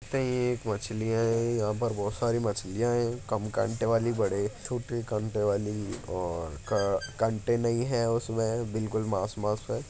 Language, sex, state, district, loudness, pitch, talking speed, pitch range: Hindi, male, Uttar Pradesh, Muzaffarnagar, -30 LUFS, 110 Hz, 160 wpm, 105-120 Hz